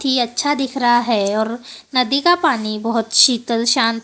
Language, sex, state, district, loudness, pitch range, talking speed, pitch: Hindi, male, Maharashtra, Gondia, -16 LUFS, 230-265 Hz, 180 wpm, 240 Hz